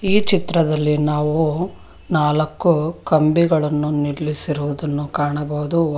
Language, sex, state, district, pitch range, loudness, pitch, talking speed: Kannada, female, Karnataka, Bangalore, 150-165 Hz, -19 LUFS, 150 Hz, 70 wpm